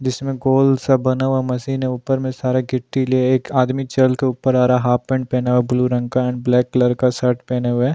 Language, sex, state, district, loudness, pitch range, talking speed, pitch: Hindi, male, Goa, North and South Goa, -18 LUFS, 125-130 Hz, 265 wpm, 130 Hz